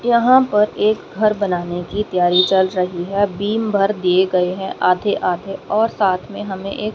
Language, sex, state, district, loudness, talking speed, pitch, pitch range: Hindi, female, Haryana, Rohtak, -18 LUFS, 190 wpm, 195 Hz, 180-210 Hz